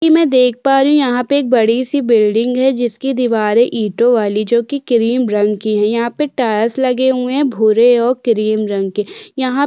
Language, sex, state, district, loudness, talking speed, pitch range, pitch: Hindi, female, Uttarakhand, Tehri Garhwal, -14 LUFS, 225 wpm, 220-265 Hz, 245 Hz